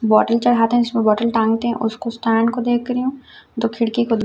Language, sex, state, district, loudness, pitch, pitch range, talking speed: Hindi, female, Chhattisgarh, Raipur, -18 LUFS, 230 Hz, 225-240 Hz, 225 wpm